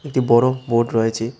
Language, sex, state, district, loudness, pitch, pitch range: Bengali, male, Tripura, West Tripura, -18 LUFS, 120 Hz, 115-130 Hz